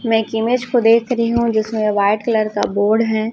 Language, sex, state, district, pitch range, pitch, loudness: Hindi, female, Chhattisgarh, Raipur, 215-235 Hz, 225 Hz, -16 LUFS